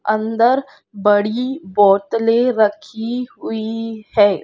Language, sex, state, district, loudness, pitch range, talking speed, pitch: Hindi, female, Bihar, Purnia, -17 LUFS, 210-240 Hz, 80 wpm, 225 Hz